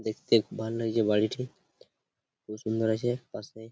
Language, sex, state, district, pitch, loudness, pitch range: Bengali, male, West Bengal, Purulia, 110 Hz, -29 LUFS, 110-115 Hz